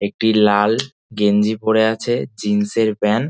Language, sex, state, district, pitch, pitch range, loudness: Bengali, male, West Bengal, Dakshin Dinajpur, 110 Hz, 105-110 Hz, -17 LUFS